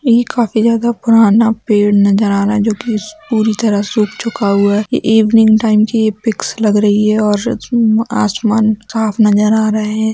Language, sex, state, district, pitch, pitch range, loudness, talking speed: Hindi, female, Chhattisgarh, Raigarh, 220 Hz, 210-225 Hz, -12 LUFS, 200 wpm